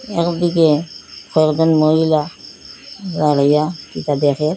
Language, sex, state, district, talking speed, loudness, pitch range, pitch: Bengali, female, Assam, Hailakandi, 80 wpm, -16 LUFS, 150-170 Hz, 155 Hz